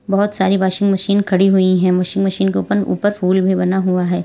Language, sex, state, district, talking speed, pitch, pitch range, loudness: Hindi, female, Uttar Pradesh, Lalitpur, 240 wpm, 190 Hz, 185-195 Hz, -15 LUFS